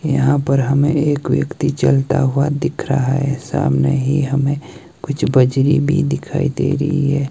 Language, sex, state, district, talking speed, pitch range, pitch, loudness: Hindi, male, Himachal Pradesh, Shimla, 165 wpm, 135-145 Hz, 140 Hz, -17 LUFS